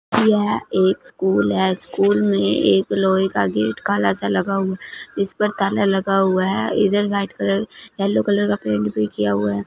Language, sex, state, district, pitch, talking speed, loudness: Hindi, female, Punjab, Fazilka, 190 Hz, 195 wpm, -19 LUFS